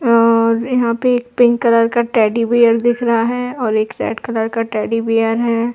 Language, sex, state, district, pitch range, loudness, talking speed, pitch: Hindi, female, Uttar Pradesh, Hamirpur, 230-240 Hz, -15 LUFS, 210 wpm, 230 Hz